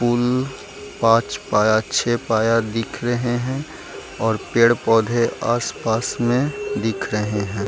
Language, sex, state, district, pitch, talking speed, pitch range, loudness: Hindi, male, Bihar, Gaya, 115 Hz, 115 wpm, 110-120 Hz, -20 LUFS